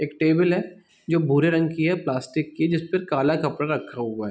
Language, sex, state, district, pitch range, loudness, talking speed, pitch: Hindi, male, Chhattisgarh, Bilaspur, 145-170 Hz, -23 LUFS, 220 wpm, 160 Hz